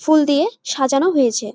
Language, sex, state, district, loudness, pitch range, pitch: Bengali, female, West Bengal, Jalpaiguri, -17 LUFS, 265-310 Hz, 285 Hz